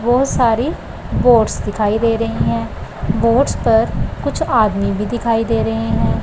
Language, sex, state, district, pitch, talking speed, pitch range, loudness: Hindi, male, Punjab, Pathankot, 225 Hz, 155 wpm, 200-235 Hz, -16 LUFS